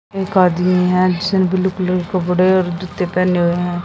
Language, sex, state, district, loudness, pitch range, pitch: Hindi, female, Haryana, Jhajjar, -16 LUFS, 180-185 Hz, 180 Hz